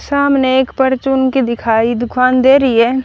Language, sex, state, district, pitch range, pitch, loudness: Hindi, female, Haryana, Rohtak, 240-265 Hz, 260 Hz, -13 LUFS